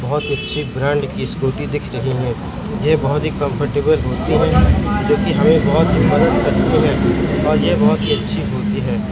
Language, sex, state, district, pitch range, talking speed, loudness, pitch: Hindi, male, Madhya Pradesh, Katni, 130-150 Hz, 185 wpm, -16 LUFS, 145 Hz